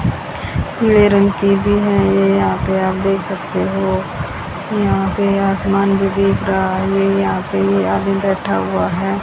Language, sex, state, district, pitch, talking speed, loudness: Hindi, female, Haryana, Jhajjar, 185 Hz, 175 wpm, -16 LUFS